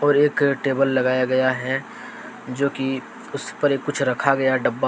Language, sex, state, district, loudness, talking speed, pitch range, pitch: Hindi, male, Jharkhand, Deoghar, -21 LUFS, 160 wpm, 130-140 Hz, 135 Hz